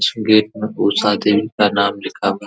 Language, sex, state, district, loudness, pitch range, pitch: Hindi, male, Bihar, Araria, -16 LUFS, 100-110 Hz, 105 Hz